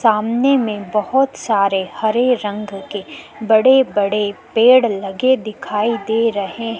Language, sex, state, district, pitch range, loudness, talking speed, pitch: Hindi, female, Uttarakhand, Tehri Garhwal, 205-235 Hz, -16 LUFS, 130 wpm, 220 Hz